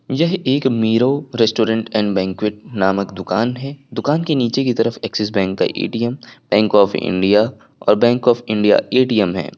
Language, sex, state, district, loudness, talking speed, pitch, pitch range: Hindi, male, Uttar Pradesh, Lucknow, -17 LUFS, 170 wpm, 115 Hz, 105-125 Hz